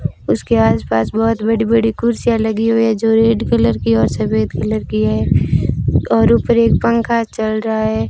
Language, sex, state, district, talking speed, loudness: Hindi, female, Rajasthan, Bikaner, 185 wpm, -15 LUFS